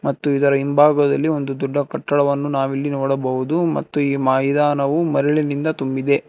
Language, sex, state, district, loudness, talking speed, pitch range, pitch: Kannada, male, Karnataka, Bangalore, -19 LUFS, 125 wpm, 135-145 Hz, 140 Hz